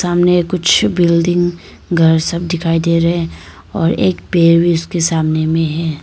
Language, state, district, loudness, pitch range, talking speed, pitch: Hindi, Arunachal Pradesh, Lower Dibang Valley, -14 LUFS, 160-175 Hz, 170 wpm, 170 Hz